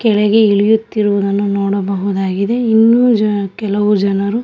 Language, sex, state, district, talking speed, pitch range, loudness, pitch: Kannada, female, Karnataka, Shimoga, 80 wpm, 200-220 Hz, -14 LUFS, 205 Hz